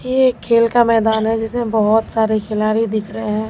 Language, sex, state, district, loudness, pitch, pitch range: Hindi, female, Bihar, Katihar, -16 LUFS, 225 Hz, 215-230 Hz